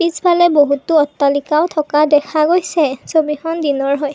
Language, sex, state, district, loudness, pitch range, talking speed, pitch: Assamese, female, Assam, Kamrup Metropolitan, -15 LUFS, 290-330 Hz, 130 wpm, 305 Hz